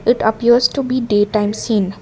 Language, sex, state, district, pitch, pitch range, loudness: English, female, Karnataka, Bangalore, 220 Hz, 205-240 Hz, -16 LUFS